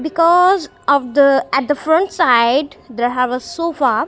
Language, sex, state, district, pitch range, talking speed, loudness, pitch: English, female, Punjab, Kapurthala, 250-330 Hz, 160 wpm, -15 LUFS, 280 Hz